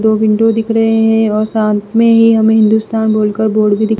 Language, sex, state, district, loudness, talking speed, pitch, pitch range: Hindi, female, Bihar, West Champaran, -11 LUFS, 180 wpm, 220 Hz, 215-225 Hz